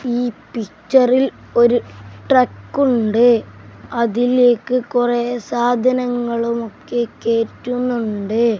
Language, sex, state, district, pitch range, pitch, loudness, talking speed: Malayalam, male, Kerala, Kasaragod, 230-250 Hz, 240 Hz, -17 LUFS, 55 wpm